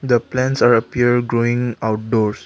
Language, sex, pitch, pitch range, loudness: English, male, 120 Hz, 110-125 Hz, -17 LUFS